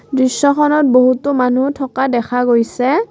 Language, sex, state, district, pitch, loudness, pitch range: Assamese, female, Assam, Kamrup Metropolitan, 260 Hz, -14 LUFS, 250-285 Hz